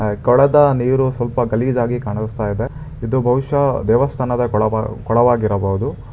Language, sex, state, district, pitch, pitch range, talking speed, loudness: Kannada, male, Karnataka, Bangalore, 120 Hz, 110-130 Hz, 110 wpm, -17 LUFS